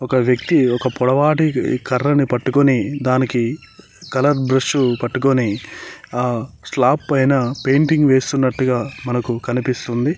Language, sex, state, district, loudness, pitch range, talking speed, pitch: Telugu, male, Telangana, Mahabubabad, -17 LUFS, 125-140 Hz, 105 wpm, 130 Hz